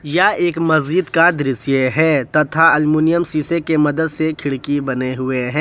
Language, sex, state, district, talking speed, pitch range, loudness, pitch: Hindi, male, Jharkhand, Ranchi, 170 wpm, 140-165 Hz, -16 LUFS, 155 Hz